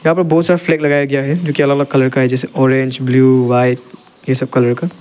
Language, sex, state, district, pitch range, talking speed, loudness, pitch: Hindi, male, Arunachal Pradesh, Lower Dibang Valley, 130-155 Hz, 275 wpm, -14 LUFS, 135 Hz